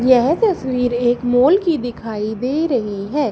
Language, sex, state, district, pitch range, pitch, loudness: Hindi, female, Haryana, Charkhi Dadri, 240-295 Hz, 250 Hz, -17 LUFS